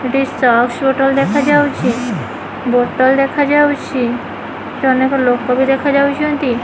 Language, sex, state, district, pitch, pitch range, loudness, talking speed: Odia, female, Odisha, Khordha, 265 Hz, 245-280 Hz, -14 LUFS, 100 wpm